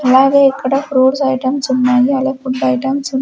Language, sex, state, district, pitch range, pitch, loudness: Telugu, female, Andhra Pradesh, Sri Satya Sai, 260-275 Hz, 265 Hz, -14 LUFS